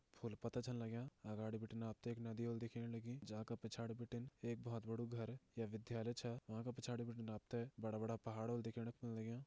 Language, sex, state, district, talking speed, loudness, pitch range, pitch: Garhwali, male, Uttarakhand, Tehri Garhwal, 210 wpm, -49 LUFS, 115-120 Hz, 115 Hz